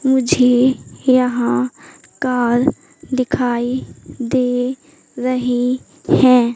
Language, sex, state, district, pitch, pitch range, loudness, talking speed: Hindi, female, Madhya Pradesh, Katni, 250 Hz, 245-260 Hz, -17 LUFS, 65 wpm